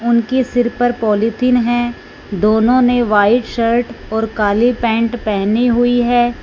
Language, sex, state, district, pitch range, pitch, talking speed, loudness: Hindi, female, Punjab, Fazilka, 220-245 Hz, 235 Hz, 140 wpm, -15 LUFS